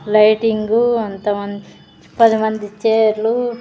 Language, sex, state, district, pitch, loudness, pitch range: Telugu, female, Andhra Pradesh, Sri Satya Sai, 220 Hz, -16 LUFS, 210-230 Hz